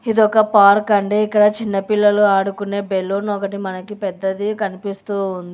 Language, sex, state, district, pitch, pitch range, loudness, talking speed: Telugu, female, Telangana, Hyderabad, 200 Hz, 195-210 Hz, -17 LUFS, 140 wpm